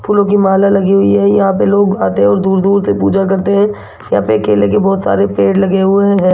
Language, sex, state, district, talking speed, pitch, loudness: Hindi, female, Rajasthan, Jaipur, 265 wpm, 195 Hz, -11 LUFS